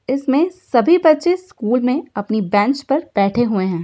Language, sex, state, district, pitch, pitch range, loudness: Hindi, female, Bihar, Saharsa, 255 Hz, 215-310 Hz, -17 LUFS